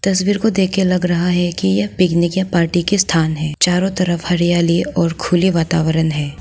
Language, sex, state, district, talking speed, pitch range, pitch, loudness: Hindi, female, Arunachal Pradesh, Lower Dibang Valley, 195 wpm, 165-185 Hz, 175 Hz, -16 LUFS